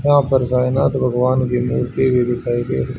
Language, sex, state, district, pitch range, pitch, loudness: Hindi, male, Haryana, Jhajjar, 125-135 Hz, 125 Hz, -17 LUFS